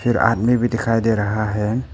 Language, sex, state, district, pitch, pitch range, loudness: Hindi, male, Arunachal Pradesh, Papum Pare, 115 Hz, 110-120 Hz, -19 LUFS